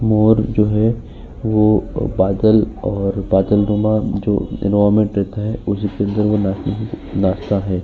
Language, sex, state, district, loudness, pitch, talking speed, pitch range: Hindi, male, Uttar Pradesh, Jyotiba Phule Nagar, -17 LUFS, 105 Hz, 105 wpm, 100-110 Hz